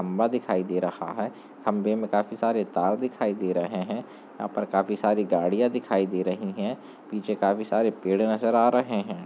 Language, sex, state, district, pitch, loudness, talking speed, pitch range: Hindi, male, Chhattisgarh, Balrampur, 105 Hz, -26 LUFS, 200 wpm, 95-115 Hz